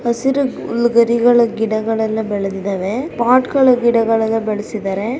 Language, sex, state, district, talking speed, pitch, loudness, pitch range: Kannada, female, Karnataka, Raichur, 105 wpm, 225 Hz, -16 LUFS, 215-240 Hz